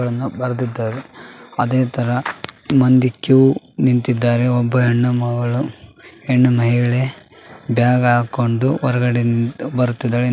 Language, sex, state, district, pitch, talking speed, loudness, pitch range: Kannada, male, Karnataka, Raichur, 125 Hz, 100 wpm, -17 LUFS, 120-130 Hz